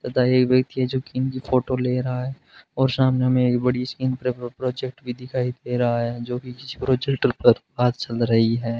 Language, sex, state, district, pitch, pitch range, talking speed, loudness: Hindi, male, Rajasthan, Bikaner, 125 Hz, 125-130 Hz, 210 wpm, -22 LUFS